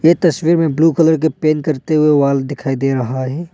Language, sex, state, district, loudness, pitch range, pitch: Hindi, male, Arunachal Pradesh, Longding, -15 LUFS, 140-165 Hz, 155 Hz